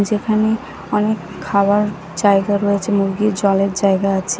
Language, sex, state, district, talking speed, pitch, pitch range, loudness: Bengali, female, Odisha, Nuapada, 120 wpm, 200 Hz, 195-210 Hz, -17 LUFS